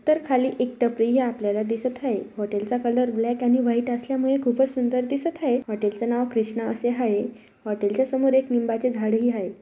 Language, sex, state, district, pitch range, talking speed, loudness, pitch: Marathi, female, Maharashtra, Dhule, 225-255 Hz, 200 wpm, -24 LUFS, 240 Hz